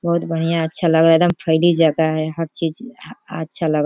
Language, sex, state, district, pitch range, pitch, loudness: Hindi, female, Bihar, East Champaran, 160-170 Hz, 165 Hz, -17 LUFS